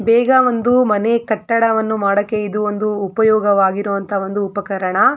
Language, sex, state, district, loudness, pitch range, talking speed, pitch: Kannada, female, Karnataka, Mysore, -16 LUFS, 200-230 Hz, 125 wpm, 210 Hz